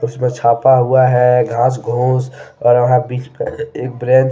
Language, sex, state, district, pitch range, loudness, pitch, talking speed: Hindi, male, Jharkhand, Deoghar, 125-130 Hz, -14 LUFS, 125 Hz, 180 wpm